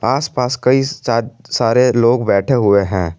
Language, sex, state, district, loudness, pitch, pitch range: Hindi, male, Jharkhand, Garhwa, -15 LUFS, 120 Hz, 110-130 Hz